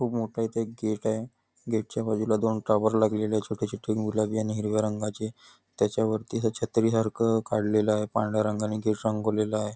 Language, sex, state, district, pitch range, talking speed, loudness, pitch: Marathi, male, Maharashtra, Nagpur, 105-110 Hz, 185 wpm, -27 LUFS, 110 Hz